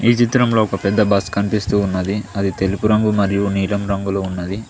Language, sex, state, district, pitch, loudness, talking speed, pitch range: Telugu, male, Telangana, Mahabubabad, 100 Hz, -18 LUFS, 165 wpm, 100-105 Hz